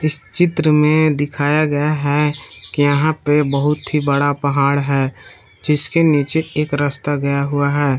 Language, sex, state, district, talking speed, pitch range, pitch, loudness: Hindi, male, Jharkhand, Palamu, 160 wpm, 140-150 Hz, 145 Hz, -16 LUFS